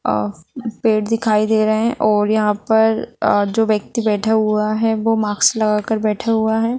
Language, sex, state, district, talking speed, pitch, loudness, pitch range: Hindi, female, Bihar, Saran, 185 wpm, 220 Hz, -17 LUFS, 210-225 Hz